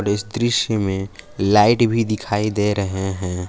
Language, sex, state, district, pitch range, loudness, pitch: Hindi, male, Jharkhand, Palamu, 95-110 Hz, -19 LUFS, 105 Hz